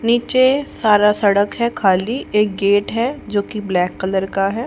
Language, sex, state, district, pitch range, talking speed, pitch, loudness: Hindi, female, Haryana, Rohtak, 200-235 Hz, 165 wpm, 210 Hz, -17 LUFS